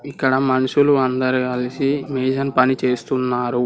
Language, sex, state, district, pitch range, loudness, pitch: Telugu, male, Telangana, Karimnagar, 125-135 Hz, -19 LUFS, 130 Hz